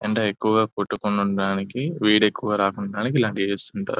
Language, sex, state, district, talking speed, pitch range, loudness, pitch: Telugu, male, Telangana, Nalgonda, 165 wpm, 100-110 Hz, -22 LUFS, 105 Hz